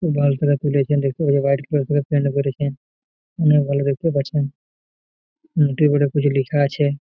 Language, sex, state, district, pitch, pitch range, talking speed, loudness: Bengali, male, West Bengal, Malda, 145 Hz, 140-150 Hz, 120 wpm, -19 LUFS